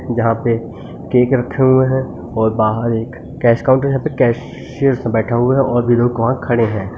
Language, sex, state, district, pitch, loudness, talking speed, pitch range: Hindi, male, Uttar Pradesh, Lucknow, 120 Hz, -16 LUFS, 205 wpm, 115-130 Hz